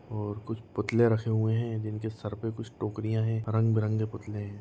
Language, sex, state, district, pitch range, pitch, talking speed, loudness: Hindi, female, Goa, North and South Goa, 105-115 Hz, 110 Hz, 195 wpm, -30 LUFS